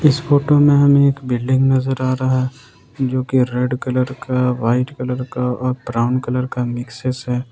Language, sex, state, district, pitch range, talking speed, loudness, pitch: Hindi, male, Jharkhand, Ranchi, 125-130 Hz, 185 wpm, -18 LUFS, 130 Hz